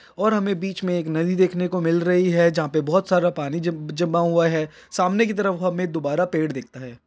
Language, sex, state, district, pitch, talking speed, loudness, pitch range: Hindi, male, Bihar, Jahanabad, 175 Hz, 240 wpm, -22 LUFS, 160-185 Hz